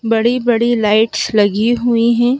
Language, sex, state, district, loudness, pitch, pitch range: Hindi, male, Madhya Pradesh, Bhopal, -14 LUFS, 235 Hz, 220-240 Hz